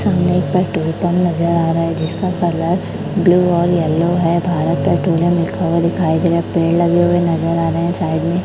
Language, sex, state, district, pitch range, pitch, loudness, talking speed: Hindi, female, Chhattisgarh, Raipur, 165-175 Hz, 170 Hz, -16 LUFS, 220 wpm